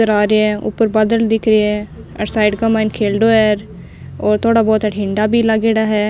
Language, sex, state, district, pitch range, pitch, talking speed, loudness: Rajasthani, female, Rajasthan, Nagaur, 210-225 Hz, 215 Hz, 215 wpm, -15 LUFS